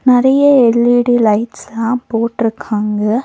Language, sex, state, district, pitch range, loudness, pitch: Tamil, female, Tamil Nadu, Nilgiris, 220-250 Hz, -13 LUFS, 235 Hz